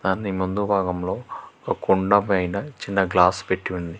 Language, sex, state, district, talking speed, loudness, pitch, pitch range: Telugu, male, Telangana, Hyderabad, 150 wpm, -22 LUFS, 95 Hz, 90-100 Hz